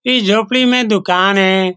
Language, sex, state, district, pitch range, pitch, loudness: Hindi, male, Bihar, Saran, 190-250 Hz, 205 Hz, -12 LUFS